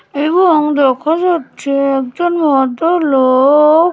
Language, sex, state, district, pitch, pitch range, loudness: Bengali, female, West Bengal, Jhargram, 300 Hz, 270-335 Hz, -12 LUFS